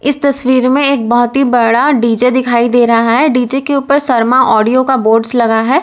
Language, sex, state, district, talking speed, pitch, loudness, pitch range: Hindi, female, Uttar Pradesh, Lalitpur, 215 wpm, 250 Hz, -10 LUFS, 235-270 Hz